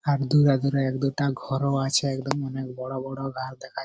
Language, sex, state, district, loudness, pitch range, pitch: Bengali, male, West Bengal, Purulia, -25 LUFS, 135-140 Hz, 135 Hz